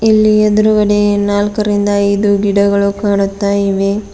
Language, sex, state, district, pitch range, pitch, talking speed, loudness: Kannada, female, Karnataka, Bidar, 200-210 Hz, 205 Hz, 100 wpm, -12 LUFS